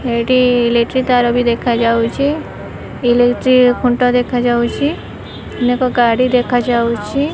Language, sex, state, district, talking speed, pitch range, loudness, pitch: Odia, male, Odisha, Khordha, 90 wpm, 235-255 Hz, -14 LUFS, 245 Hz